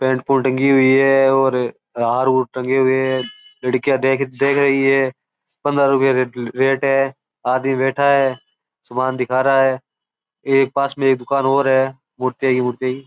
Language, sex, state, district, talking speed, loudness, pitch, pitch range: Marwari, male, Rajasthan, Churu, 140 wpm, -17 LUFS, 135 Hz, 130-135 Hz